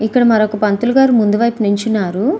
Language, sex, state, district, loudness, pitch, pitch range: Telugu, female, Andhra Pradesh, Srikakulam, -14 LUFS, 220 Hz, 210-240 Hz